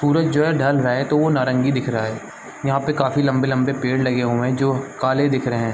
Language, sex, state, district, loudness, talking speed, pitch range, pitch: Hindi, male, Chhattisgarh, Bastar, -19 LUFS, 260 wpm, 125-140 Hz, 135 Hz